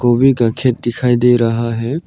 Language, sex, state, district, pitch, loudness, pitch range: Hindi, male, Arunachal Pradesh, Lower Dibang Valley, 120 Hz, -14 LUFS, 115-125 Hz